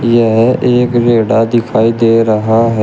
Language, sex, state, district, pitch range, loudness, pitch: Hindi, male, Uttar Pradesh, Shamli, 110-120 Hz, -11 LUFS, 115 Hz